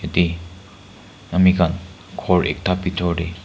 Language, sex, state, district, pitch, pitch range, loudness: Nagamese, male, Nagaland, Kohima, 90 Hz, 85-95 Hz, -19 LUFS